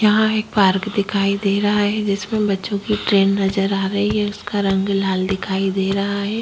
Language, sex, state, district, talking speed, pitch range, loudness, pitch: Hindi, female, Chhattisgarh, Kabirdham, 205 wpm, 195-210 Hz, -19 LUFS, 200 Hz